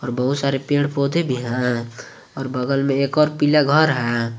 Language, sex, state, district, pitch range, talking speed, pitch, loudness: Hindi, male, Jharkhand, Garhwa, 125-145 Hz, 190 wpm, 135 Hz, -19 LUFS